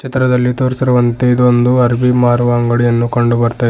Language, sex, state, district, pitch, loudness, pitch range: Kannada, male, Karnataka, Bidar, 120 Hz, -12 LUFS, 120-125 Hz